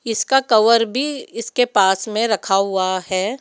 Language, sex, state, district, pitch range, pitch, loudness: Hindi, female, Rajasthan, Jaipur, 195-245 Hz, 220 Hz, -18 LUFS